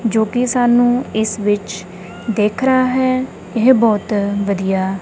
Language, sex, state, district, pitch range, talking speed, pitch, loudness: Punjabi, female, Punjab, Kapurthala, 200-245 Hz, 130 wpm, 220 Hz, -16 LUFS